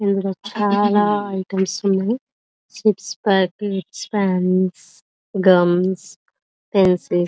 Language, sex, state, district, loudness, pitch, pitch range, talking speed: Telugu, female, Andhra Pradesh, Visakhapatnam, -19 LUFS, 195 Hz, 185-205 Hz, 80 wpm